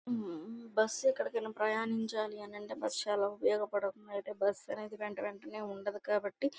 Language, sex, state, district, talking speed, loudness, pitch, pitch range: Telugu, female, Andhra Pradesh, Guntur, 135 wpm, -36 LUFS, 210 Hz, 205-225 Hz